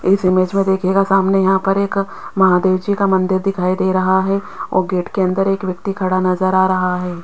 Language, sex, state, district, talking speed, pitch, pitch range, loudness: Hindi, female, Rajasthan, Jaipur, 225 wpm, 190 Hz, 185-195 Hz, -16 LUFS